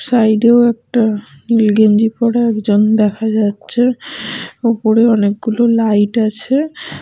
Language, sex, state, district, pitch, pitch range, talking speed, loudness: Bengali, female, West Bengal, Malda, 225 Hz, 215-235 Hz, 110 wpm, -14 LUFS